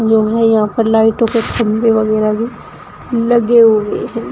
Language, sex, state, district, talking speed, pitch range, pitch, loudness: Hindi, female, Uttar Pradesh, Shamli, 140 wpm, 220-230 Hz, 225 Hz, -13 LUFS